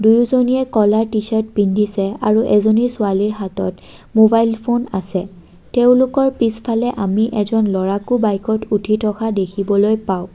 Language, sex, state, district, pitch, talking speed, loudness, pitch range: Assamese, female, Assam, Kamrup Metropolitan, 215 Hz, 120 wpm, -16 LUFS, 200-230 Hz